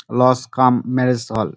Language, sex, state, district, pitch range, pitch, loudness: Bengali, male, West Bengal, Dakshin Dinajpur, 120-125 Hz, 125 Hz, -17 LUFS